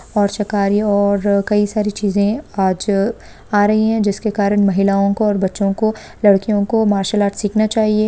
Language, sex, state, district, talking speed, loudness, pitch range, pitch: Hindi, female, West Bengal, Malda, 170 wpm, -16 LUFS, 200-215 Hz, 205 Hz